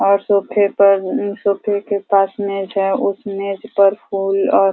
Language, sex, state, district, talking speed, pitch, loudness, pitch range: Hindi, female, Uttar Pradesh, Ghazipur, 180 wpm, 200 Hz, -17 LUFS, 195-200 Hz